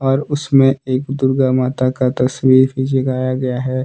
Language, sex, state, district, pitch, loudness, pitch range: Hindi, male, Jharkhand, Deoghar, 130 Hz, -16 LUFS, 130-135 Hz